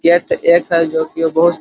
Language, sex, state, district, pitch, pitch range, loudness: Hindi, male, Chhattisgarh, Korba, 170 Hz, 165-170 Hz, -14 LUFS